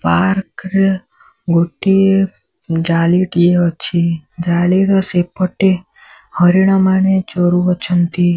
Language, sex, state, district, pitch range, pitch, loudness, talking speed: Odia, male, Odisha, Sambalpur, 170-190 Hz, 180 Hz, -14 LUFS, 85 wpm